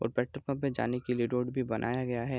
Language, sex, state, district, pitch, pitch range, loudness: Hindi, male, Bihar, Araria, 125 Hz, 120-130 Hz, -33 LUFS